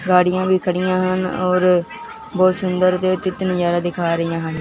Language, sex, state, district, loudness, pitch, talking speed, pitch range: Hindi, male, Punjab, Fazilka, -18 LUFS, 185 Hz, 170 wpm, 180-185 Hz